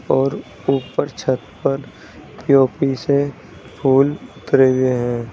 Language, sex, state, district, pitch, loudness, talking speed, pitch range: Hindi, male, Uttar Pradesh, Saharanpur, 135 Hz, -18 LUFS, 110 wpm, 130-140 Hz